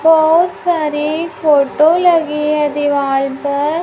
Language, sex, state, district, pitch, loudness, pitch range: Hindi, female, Chhattisgarh, Raipur, 300 Hz, -14 LUFS, 290-325 Hz